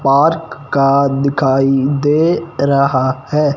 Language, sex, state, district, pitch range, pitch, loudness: Hindi, male, Punjab, Fazilka, 135-145 Hz, 140 Hz, -14 LUFS